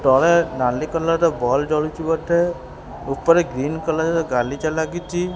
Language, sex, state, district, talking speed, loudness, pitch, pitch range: Odia, male, Odisha, Khordha, 145 wpm, -20 LUFS, 160 Hz, 140-170 Hz